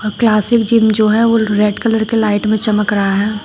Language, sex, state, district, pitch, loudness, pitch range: Hindi, female, Uttar Pradesh, Shamli, 215 Hz, -13 LUFS, 210-225 Hz